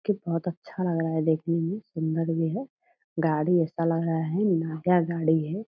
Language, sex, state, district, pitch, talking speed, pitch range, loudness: Hindi, female, Bihar, Purnia, 165 Hz, 200 wpm, 160-180 Hz, -27 LUFS